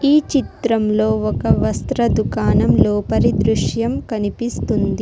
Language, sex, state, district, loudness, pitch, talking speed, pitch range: Telugu, female, Telangana, Hyderabad, -17 LUFS, 220 Hz, 95 wpm, 210-240 Hz